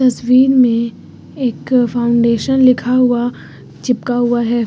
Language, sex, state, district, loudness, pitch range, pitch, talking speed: Hindi, female, Uttar Pradesh, Lucknow, -14 LUFS, 235-255 Hz, 245 Hz, 115 wpm